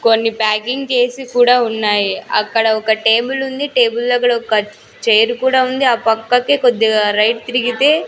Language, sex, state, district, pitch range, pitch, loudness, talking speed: Telugu, female, Andhra Pradesh, Sri Satya Sai, 220-250 Hz, 240 Hz, -14 LUFS, 140 wpm